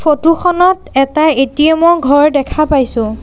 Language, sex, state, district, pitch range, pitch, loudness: Assamese, female, Assam, Sonitpur, 270-325 Hz, 305 Hz, -11 LUFS